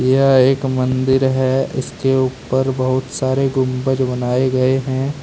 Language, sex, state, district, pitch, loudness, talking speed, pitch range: Hindi, male, Jharkhand, Deoghar, 130 Hz, -17 LUFS, 135 wpm, 130-135 Hz